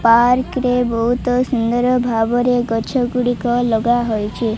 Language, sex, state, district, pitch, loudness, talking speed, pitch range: Odia, female, Odisha, Malkangiri, 240 Hz, -17 LUFS, 120 wpm, 230-250 Hz